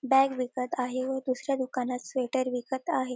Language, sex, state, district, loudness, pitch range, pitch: Marathi, female, Maharashtra, Dhule, -30 LUFS, 250-265 Hz, 255 Hz